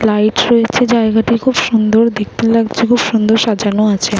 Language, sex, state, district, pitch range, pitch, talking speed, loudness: Bengali, female, West Bengal, Malda, 215-235 Hz, 225 Hz, 155 wpm, -12 LUFS